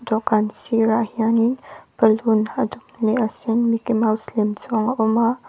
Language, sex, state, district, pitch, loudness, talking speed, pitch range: Mizo, female, Mizoram, Aizawl, 225 Hz, -20 LUFS, 175 wpm, 220-230 Hz